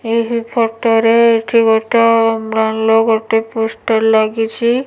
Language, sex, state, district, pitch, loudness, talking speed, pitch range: Odia, female, Odisha, Nuapada, 225 Hz, -13 LUFS, 110 wpm, 225-230 Hz